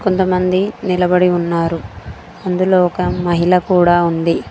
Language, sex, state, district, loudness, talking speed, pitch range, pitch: Telugu, female, Telangana, Mahabubabad, -15 LUFS, 105 wpm, 175-185 Hz, 180 Hz